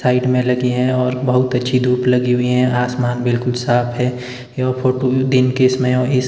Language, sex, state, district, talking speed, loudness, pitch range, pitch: Hindi, male, Himachal Pradesh, Shimla, 210 wpm, -16 LUFS, 125-130 Hz, 125 Hz